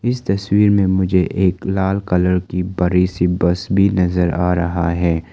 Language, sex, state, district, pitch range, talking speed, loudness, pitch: Hindi, male, Arunachal Pradesh, Lower Dibang Valley, 90-95 Hz, 180 wpm, -17 LUFS, 90 Hz